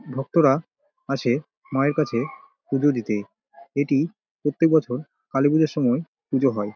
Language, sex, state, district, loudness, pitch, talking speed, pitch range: Bengali, male, West Bengal, Dakshin Dinajpur, -23 LUFS, 140 Hz, 115 wpm, 135-160 Hz